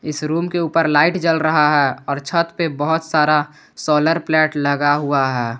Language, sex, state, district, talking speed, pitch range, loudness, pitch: Hindi, male, Jharkhand, Garhwa, 190 wpm, 145-165 Hz, -17 LUFS, 150 Hz